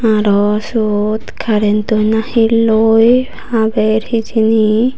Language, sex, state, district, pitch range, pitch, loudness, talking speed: Chakma, female, Tripura, Unakoti, 215-225 Hz, 220 Hz, -13 LUFS, 95 wpm